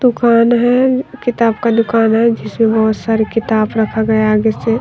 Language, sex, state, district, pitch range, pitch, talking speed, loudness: Hindi, female, Bihar, West Champaran, 220-235 Hz, 225 Hz, 185 wpm, -13 LUFS